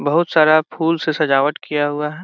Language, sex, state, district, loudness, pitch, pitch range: Hindi, male, Bihar, Saran, -17 LUFS, 155 Hz, 150-165 Hz